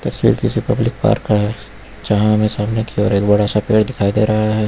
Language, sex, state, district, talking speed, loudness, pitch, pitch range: Hindi, male, Uttar Pradesh, Lucknow, 245 wpm, -16 LUFS, 105 Hz, 105-110 Hz